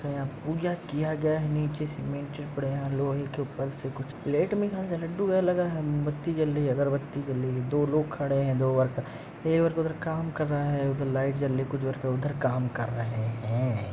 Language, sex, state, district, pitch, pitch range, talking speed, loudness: Hindi, male, Uttar Pradesh, Jyotiba Phule Nagar, 140 Hz, 135-155 Hz, 235 wpm, -29 LUFS